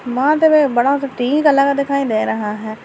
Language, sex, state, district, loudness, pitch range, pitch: Hindi, female, Bihar, Purnia, -15 LUFS, 235-285 Hz, 275 Hz